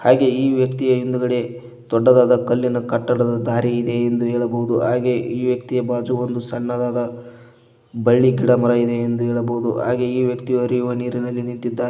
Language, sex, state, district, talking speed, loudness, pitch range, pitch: Kannada, male, Karnataka, Koppal, 145 wpm, -19 LUFS, 120-125 Hz, 120 Hz